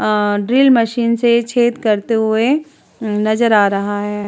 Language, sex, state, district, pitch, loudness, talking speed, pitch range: Hindi, female, Uttar Pradesh, Jalaun, 225 Hz, -15 LUFS, 155 wpm, 210-240 Hz